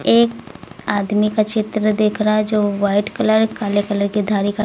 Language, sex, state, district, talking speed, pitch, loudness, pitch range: Hindi, female, Uttar Pradesh, Lucknow, 195 wpm, 210 Hz, -18 LUFS, 205-215 Hz